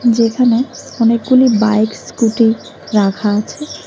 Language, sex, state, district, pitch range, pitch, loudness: Bengali, female, Tripura, West Tripura, 215-240 Hz, 230 Hz, -14 LUFS